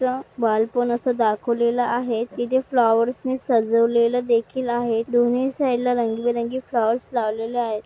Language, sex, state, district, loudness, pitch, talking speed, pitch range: Marathi, female, Maharashtra, Nagpur, -21 LUFS, 240 Hz, 135 wpm, 230-250 Hz